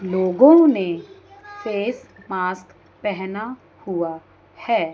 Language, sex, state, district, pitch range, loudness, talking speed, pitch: Hindi, female, Chandigarh, Chandigarh, 180-250 Hz, -19 LUFS, 85 wpm, 195 Hz